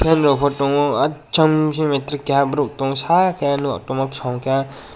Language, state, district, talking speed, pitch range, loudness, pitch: Kokborok, Tripura, West Tripura, 155 wpm, 135-150 Hz, -18 LUFS, 140 Hz